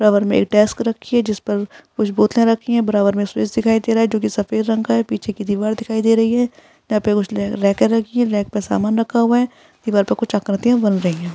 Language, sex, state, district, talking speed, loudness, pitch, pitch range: Hindi, female, Uttar Pradesh, Etah, 265 wpm, -18 LUFS, 215 Hz, 205-230 Hz